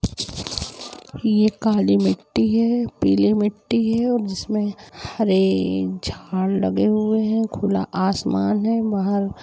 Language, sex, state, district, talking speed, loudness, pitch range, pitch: Hindi, female, Jharkhand, Sahebganj, 115 wpm, -21 LUFS, 185-220 Hz, 205 Hz